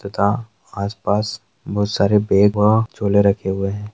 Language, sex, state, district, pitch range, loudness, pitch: Hindi, male, Bihar, Araria, 100-105 Hz, -18 LUFS, 105 Hz